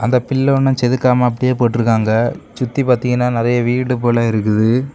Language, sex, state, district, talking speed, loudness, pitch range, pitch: Tamil, male, Tamil Nadu, Kanyakumari, 145 wpm, -15 LUFS, 120-130 Hz, 125 Hz